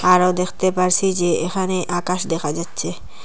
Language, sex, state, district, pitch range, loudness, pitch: Bengali, female, Assam, Hailakandi, 175-185 Hz, -20 LUFS, 180 Hz